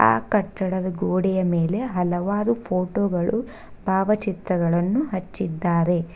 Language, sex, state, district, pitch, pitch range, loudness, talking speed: Kannada, female, Karnataka, Bangalore, 185 Hz, 175-205 Hz, -23 LUFS, 90 wpm